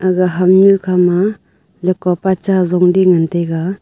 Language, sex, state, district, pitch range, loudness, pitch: Wancho, female, Arunachal Pradesh, Longding, 180-190 Hz, -13 LUFS, 185 Hz